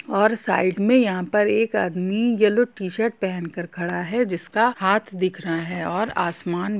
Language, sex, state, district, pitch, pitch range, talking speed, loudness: Hindi, female, Jharkhand, Jamtara, 195 Hz, 180-220 Hz, 175 wpm, -22 LUFS